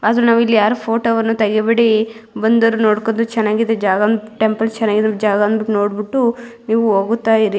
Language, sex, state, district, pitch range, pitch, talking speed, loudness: Kannada, female, Karnataka, Mysore, 215-230 Hz, 220 Hz, 140 wpm, -15 LUFS